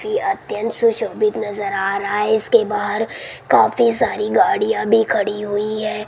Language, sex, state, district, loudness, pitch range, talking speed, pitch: Hindi, female, Rajasthan, Jaipur, -18 LUFS, 210-235 Hz, 160 wpm, 215 Hz